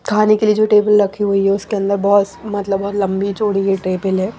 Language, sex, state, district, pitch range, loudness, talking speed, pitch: Hindi, female, Punjab, Pathankot, 195-210 Hz, -16 LUFS, 245 wpm, 200 Hz